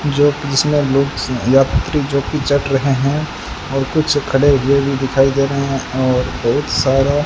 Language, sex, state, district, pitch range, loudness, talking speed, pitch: Hindi, male, Rajasthan, Bikaner, 135-145 Hz, -16 LUFS, 180 wpm, 140 Hz